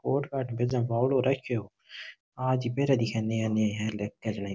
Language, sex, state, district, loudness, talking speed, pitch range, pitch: Marwari, male, Rajasthan, Nagaur, -29 LUFS, 160 wpm, 110-130 Hz, 120 Hz